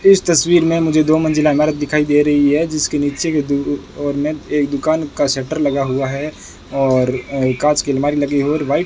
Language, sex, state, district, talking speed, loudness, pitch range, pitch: Hindi, male, Rajasthan, Bikaner, 230 wpm, -16 LUFS, 140-155 Hz, 145 Hz